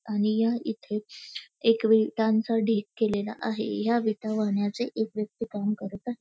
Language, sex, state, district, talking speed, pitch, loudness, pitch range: Marathi, female, Maharashtra, Pune, 155 wpm, 220 Hz, -27 LUFS, 210-225 Hz